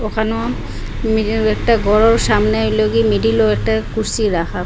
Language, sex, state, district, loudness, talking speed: Bengali, female, Assam, Hailakandi, -16 LUFS, 165 wpm